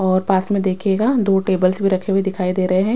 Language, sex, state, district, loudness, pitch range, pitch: Hindi, female, Chhattisgarh, Raipur, -18 LUFS, 185-195 Hz, 190 Hz